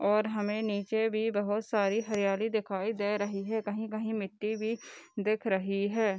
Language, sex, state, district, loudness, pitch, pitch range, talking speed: Hindi, female, Bihar, Darbhanga, -32 LUFS, 210 Hz, 205-220 Hz, 165 wpm